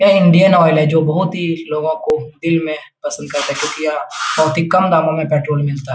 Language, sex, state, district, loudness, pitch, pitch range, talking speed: Hindi, male, Bihar, Jahanabad, -15 LUFS, 155 Hz, 150-165 Hz, 230 wpm